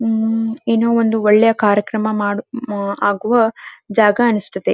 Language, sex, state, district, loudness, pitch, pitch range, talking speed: Kannada, female, Karnataka, Dharwad, -16 LUFS, 220 Hz, 205-230 Hz, 115 wpm